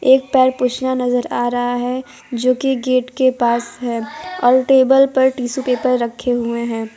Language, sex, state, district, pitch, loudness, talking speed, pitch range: Hindi, female, Gujarat, Valsad, 250 Hz, -17 LUFS, 170 wpm, 240-260 Hz